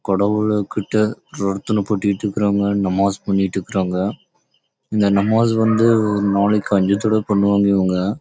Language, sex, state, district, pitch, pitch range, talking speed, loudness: Tamil, male, Karnataka, Chamarajanagar, 100 Hz, 100-105 Hz, 80 wpm, -18 LUFS